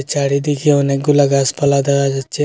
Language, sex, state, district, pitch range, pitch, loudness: Bengali, male, Assam, Hailakandi, 140-145 Hz, 140 Hz, -15 LUFS